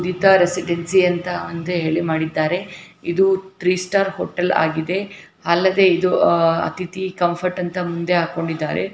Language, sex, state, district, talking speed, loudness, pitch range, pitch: Kannada, female, Karnataka, Dharwad, 115 wpm, -19 LUFS, 170-185 Hz, 180 Hz